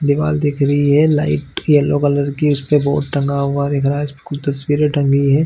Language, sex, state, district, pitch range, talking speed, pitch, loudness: Hindi, male, Chhattisgarh, Bilaspur, 140-145 Hz, 230 wpm, 145 Hz, -16 LUFS